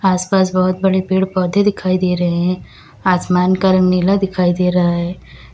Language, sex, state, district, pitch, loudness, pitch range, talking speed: Hindi, female, Uttar Pradesh, Lalitpur, 185 Hz, -15 LUFS, 180-190 Hz, 185 wpm